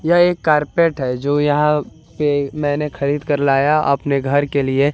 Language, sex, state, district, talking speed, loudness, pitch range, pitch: Hindi, male, Bihar, West Champaran, 180 wpm, -17 LUFS, 140-150 Hz, 145 Hz